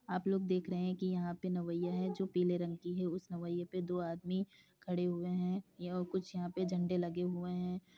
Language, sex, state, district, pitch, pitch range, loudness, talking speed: Hindi, female, Uttar Pradesh, Hamirpur, 180 Hz, 175-185 Hz, -38 LUFS, 235 wpm